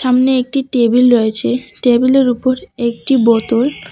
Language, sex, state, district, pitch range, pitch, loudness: Bengali, female, West Bengal, Cooch Behar, 235-255 Hz, 250 Hz, -13 LUFS